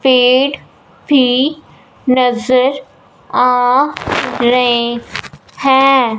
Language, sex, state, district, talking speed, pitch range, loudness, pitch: Hindi, female, Punjab, Fazilka, 60 wpm, 245-275 Hz, -13 LUFS, 255 Hz